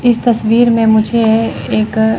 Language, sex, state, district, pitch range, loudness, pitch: Hindi, female, Chandigarh, Chandigarh, 220-235 Hz, -12 LUFS, 225 Hz